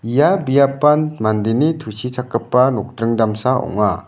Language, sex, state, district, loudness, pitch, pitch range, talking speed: Garo, male, Meghalaya, South Garo Hills, -17 LUFS, 125 Hz, 110-140 Hz, 105 wpm